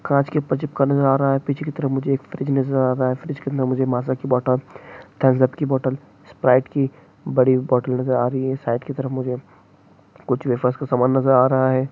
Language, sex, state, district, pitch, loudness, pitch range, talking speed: Hindi, male, West Bengal, Jhargram, 130 Hz, -20 LUFS, 130-140 Hz, 230 wpm